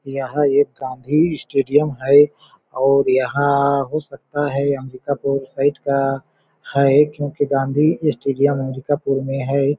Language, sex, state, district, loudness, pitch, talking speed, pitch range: Hindi, male, Chhattisgarh, Balrampur, -18 LUFS, 140 Hz, 125 wpm, 135-145 Hz